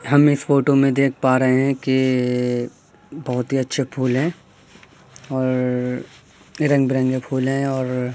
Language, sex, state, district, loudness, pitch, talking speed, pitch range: Hindi, male, Uttar Pradesh, Muzaffarnagar, -20 LUFS, 130 Hz, 145 wpm, 125-140 Hz